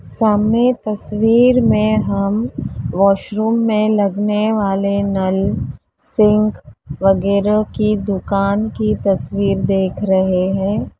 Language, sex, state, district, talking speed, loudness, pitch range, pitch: Hindi, female, Uttar Pradesh, Lalitpur, 100 wpm, -16 LUFS, 195-215 Hz, 205 Hz